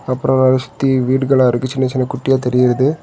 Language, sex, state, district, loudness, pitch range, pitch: Tamil, male, Tamil Nadu, Kanyakumari, -15 LUFS, 125-135 Hz, 130 Hz